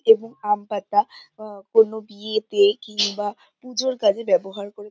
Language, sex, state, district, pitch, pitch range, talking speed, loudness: Bengali, female, West Bengal, North 24 Parganas, 215 Hz, 205-230 Hz, 135 wpm, -21 LUFS